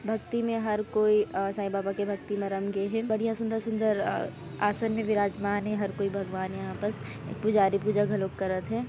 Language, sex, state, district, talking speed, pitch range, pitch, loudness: Chhattisgarhi, female, Chhattisgarh, Raigarh, 195 wpm, 195-220 Hz, 205 Hz, -29 LUFS